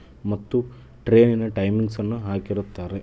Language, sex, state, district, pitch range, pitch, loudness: Kannada, male, Karnataka, Dharwad, 100-115 Hz, 105 Hz, -22 LUFS